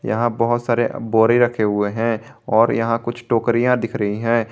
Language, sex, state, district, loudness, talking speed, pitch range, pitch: Hindi, male, Jharkhand, Garhwa, -19 LUFS, 185 wpm, 110-120 Hz, 115 Hz